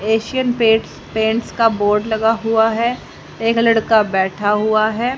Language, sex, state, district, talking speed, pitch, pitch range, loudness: Hindi, female, Haryana, Jhajjar, 150 wpm, 220 Hz, 215-230 Hz, -16 LUFS